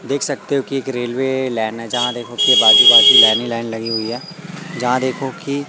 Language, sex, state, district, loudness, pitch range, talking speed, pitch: Hindi, male, Madhya Pradesh, Katni, -14 LUFS, 115-140 Hz, 245 wpm, 130 Hz